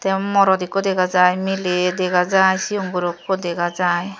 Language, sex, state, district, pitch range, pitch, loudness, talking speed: Chakma, female, Tripura, Dhalai, 180-195 Hz, 185 Hz, -18 LUFS, 185 wpm